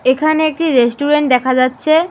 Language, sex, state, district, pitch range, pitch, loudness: Bengali, female, West Bengal, Alipurduar, 255-310 Hz, 290 Hz, -13 LUFS